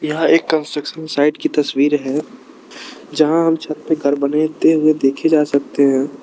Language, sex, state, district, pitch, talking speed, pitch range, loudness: Hindi, male, Arunachal Pradesh, Lower Dibang Valley, 150 Hz, 175 wpm, 140-160 Hz, -16 LUFS